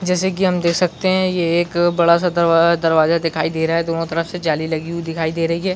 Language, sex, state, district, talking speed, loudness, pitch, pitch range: Hindi, male, Chhattisgarh, Bilaspur, 270 wpm, -17 LUFS, 170 Hz, 165-180 Hz